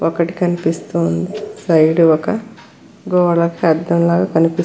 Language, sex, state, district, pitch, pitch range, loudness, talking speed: Telugu, female, Andhra Pradesh, Krishna, 170 Hz, 160-175 Hz, -16 LUFS, 105 wpm